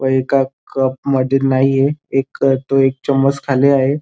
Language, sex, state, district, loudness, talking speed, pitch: Marathi, male, Maharashtra, Dhule, -16 LUFS, 165 wpm, 135 Hz